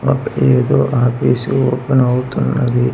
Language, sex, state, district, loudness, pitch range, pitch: Telugu, male, Andhra Pradesh, Manyam, -15 LUFS, 120-130 Hz, 125 Hz